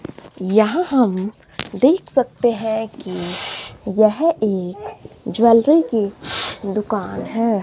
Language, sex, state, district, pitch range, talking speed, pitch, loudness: Hindi, female, Himachal Pradesh, Shimla, 205-245 Hz, 95 wpm, 220 Hz, -19 LUFS